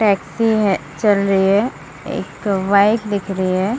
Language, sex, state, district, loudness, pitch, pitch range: Hindi, female, Uttar Pradesh, Muzaffarnagar, -17 LUFS, 200 Hz, 195-210 Hz